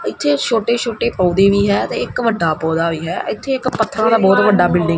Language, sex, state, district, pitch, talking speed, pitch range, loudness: Punjabi, male, Punjab, Kapurthala, 200 Hz, 230 wpm, 170-225 Hz, -16 LUFS